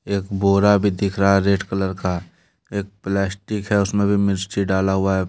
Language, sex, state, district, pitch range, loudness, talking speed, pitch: Hindi, male, Jharkhand, Deoghar, 95-100 Hz, -20 LUFS, 205 wpm, 100 Hz